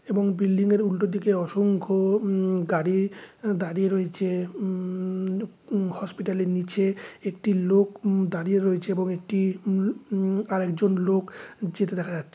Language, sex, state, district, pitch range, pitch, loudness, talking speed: Bengali, male, West Bengal, North 24 Parganas, 185-200 Hz, 195 Hz, -25 LUFS, 135 wpm